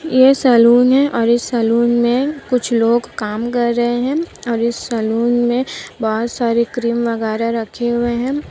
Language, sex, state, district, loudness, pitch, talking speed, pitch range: Hindi, female, Bihar, Kishanganj, -16 LUFS, 240 Hz, 170 wpm, 230-250 Hz